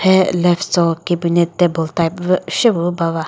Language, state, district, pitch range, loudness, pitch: Chakhesang, Nagaland, Dimapur, 170-180 Hz, -16 LUFS, 175 Hz